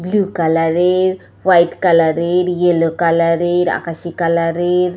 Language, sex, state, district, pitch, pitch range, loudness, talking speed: Bengali, female, West Bengal, Malda, 175 Hz, 165-180 Hz, -15 LUFS, 120 wpm